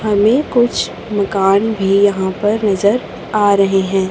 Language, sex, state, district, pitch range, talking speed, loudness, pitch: Hindi, female, Chhattisgarh, Raipur, 195-215 Hz, 145 wpm, -14 LUFS, 205 Hz